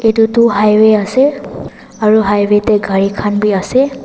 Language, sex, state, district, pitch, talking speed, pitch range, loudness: Nagamese, female, Nagaland, Dimapur, 215 Hz, 160 wpm, 205-235 Hz, -12 LUFS